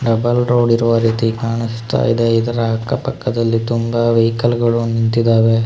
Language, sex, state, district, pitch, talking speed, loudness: Kannada, male, Karnataka, Shimoga, 115 Hz, 125 wpm, -16 LUFS